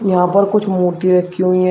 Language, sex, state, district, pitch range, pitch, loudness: Hindi, male, Uttar Pradesh, Shamli, 180-195 Hz, 185 Hz, -15 LUFS